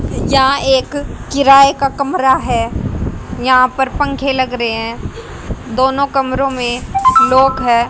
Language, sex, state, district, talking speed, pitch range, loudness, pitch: Hindi, female, Haryana, Rohtak, 130 wpm, 255-275 Hz, -13 LUFS, 265 Hz